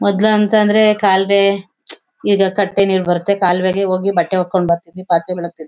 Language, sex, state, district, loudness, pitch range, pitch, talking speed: Kannada, female, Karnataka, Mysore, -15 LUFS, 180-200 Hz, 190 Hz, 150 wpm